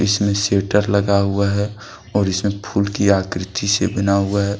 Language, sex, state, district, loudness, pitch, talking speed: Hindi, male, Jharkhand, Deoghar, -18 LUFS, 100 Hz, 180 wpm